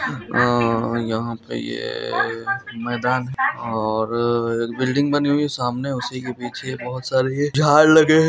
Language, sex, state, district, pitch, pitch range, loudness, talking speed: Hindi, male, Bihar, Araria, 125 Hz, 120-145 Hz, -20 LUFS, 160 wpm